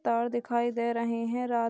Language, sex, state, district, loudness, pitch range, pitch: Hindi, female, Bihar, Darbhanga, -30 LUFS, 235-240 Hz, 235 Hz